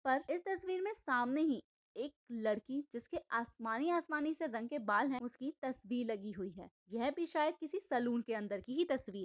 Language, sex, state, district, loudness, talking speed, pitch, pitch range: Hindi, female, Maharashtra, Aurangabad, -39 LUFS, 200 wpm, 260 Hz, 230-310 Hz